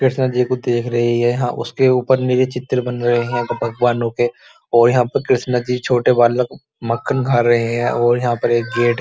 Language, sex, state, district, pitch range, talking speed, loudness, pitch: Hindi, male, Uttar Pradesh, Muzaffarnagar, 120-125 Hz, 220 wpm, -17 LUFS, 120 Hz